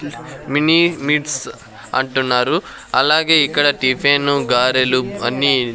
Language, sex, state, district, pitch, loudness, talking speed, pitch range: Telugu, male, Andhra Pradesh, Sri Satya Sai, 140 Hz, -16 LUFS, 85 wpm, 130-150 Hz